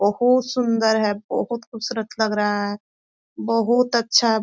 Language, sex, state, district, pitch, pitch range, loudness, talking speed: Hindi, female, Chhattisgarh, Korba, 225 Hz, 210-235 Hz, -21 LUFS, 150 wpm